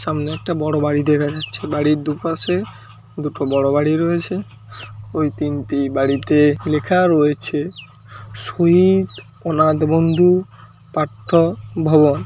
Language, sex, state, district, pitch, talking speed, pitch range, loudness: Bengali, male, West Bengal, Paschim Medinipur, 150 Hz, 110 wpm, 135-165 Hz, -18 LUFS